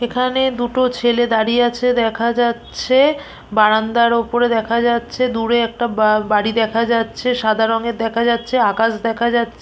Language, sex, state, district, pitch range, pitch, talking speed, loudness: Bengali, female, West Bengal, Purulia, 225-240 Hz, 235 Hz, 150 wpm, -17 LUFS